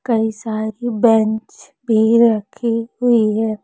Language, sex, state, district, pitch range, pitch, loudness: Hindi, female, Madhya Pradesh, Umaria, 220-235 Hz, 225 Hz, -17 LUFS